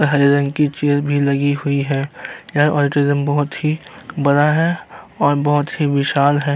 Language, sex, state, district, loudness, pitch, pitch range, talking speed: Hindi, male, Uttar Pradesh, Jyotiba Phule Nagar, -17 LUFS, 145 Hz, 140-150 Hz, 185 wpm